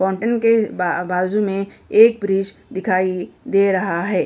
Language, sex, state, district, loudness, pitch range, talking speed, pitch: Hindi, female, Uttar Pradesh, Hamirpur, -18 LUFS, 185-210 Hz, 155 wpm, 195 Hz